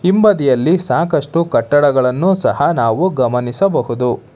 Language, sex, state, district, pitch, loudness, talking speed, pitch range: Kannada, male, Karnataka, Bangalore, 145 Hz, -14 LUFS, 85 wpm, 125-180 Hz